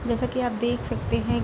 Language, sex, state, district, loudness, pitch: Hindi, female, Bihar, East Champaran, -26 LUFS, 175 Hz